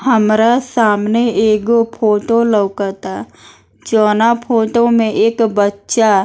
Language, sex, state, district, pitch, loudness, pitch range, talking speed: Bhojpuri, female, Bihar, East Champaran, 220 Hz, -13 LUFS, 205-230 Hz, 105 wpm